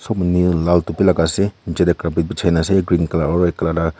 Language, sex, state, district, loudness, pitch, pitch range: Nagamese, male, Nagaland, Kohima, -17 LUFS, 85 Hz, 85-90 Hz